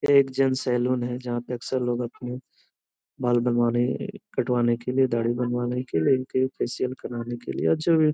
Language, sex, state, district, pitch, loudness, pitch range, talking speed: Hindi, male, Bihar, Gopalganj, 125 Hz, -25 LUFS, 120-130 Hz, 215 wpm